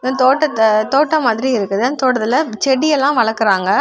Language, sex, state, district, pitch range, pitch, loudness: Tamil, female, Tamil Nadu, Kanyakumari, 220-270 Hz, 255 Hz, -15 LUFS